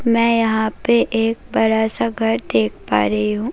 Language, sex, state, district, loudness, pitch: Hindi, female, Delhi, New Delhi, -18 LUFS, 220 Hz